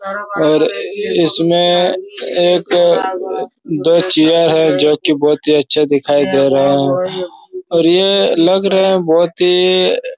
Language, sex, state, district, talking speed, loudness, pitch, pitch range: Hindi, male, Chhattisgarh, Raigarh, 130 wpm, -13 LUFS, 175 Hz, 155-190 Hz